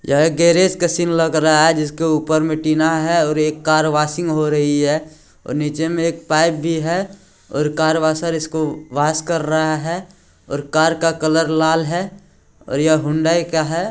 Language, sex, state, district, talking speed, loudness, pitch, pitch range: Hindi, male, Bihar, Purnia, 200 wpm, -17 LUFS, 160 Hz, 155-165 Hz